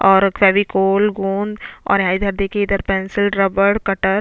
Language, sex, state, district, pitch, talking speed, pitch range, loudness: Hindi, female, Chhattisgarh, Bastar, 195 Hz, 155 wpm, 195-200 Hz, -17 LUFS